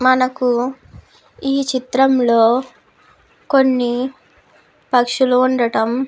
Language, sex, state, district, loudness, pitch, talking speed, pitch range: Telugu, female, Andhra Pradesh, Krishna, -16 LUFS, 255 Hz, 70 wpm, 245-265 Hz